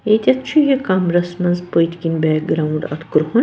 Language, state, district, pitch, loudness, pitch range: Kashmiri, Punjab, Kapurthala, 175 Hz, -17 LUFS, 165-215 Hz